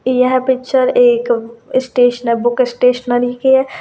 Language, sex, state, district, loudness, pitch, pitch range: Hindi, female, Rajasthan, Churu, -14 LUFS, 250 Hz, 245-255 Hz